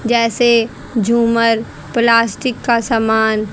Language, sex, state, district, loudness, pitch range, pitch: Hindi, female, Haryana, Rohtak, -15 LUFS, 225-235 Hz, 230 Hz